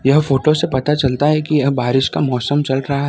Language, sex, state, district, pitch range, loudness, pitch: Hindi, male, Gujarat, Valsad, 130-150 Hz, -16 LUFS, 140 Hz